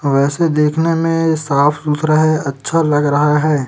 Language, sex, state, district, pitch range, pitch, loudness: Hindi, male, Chhattisgarh, Raipur, 145-160 Hz, 150 Hz, -15 LUFS